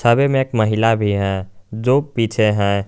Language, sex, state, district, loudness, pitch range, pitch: Hindi, male, Jharkhand, Garhwa, -17 LUFS, 100-120 Hz, 110 Hz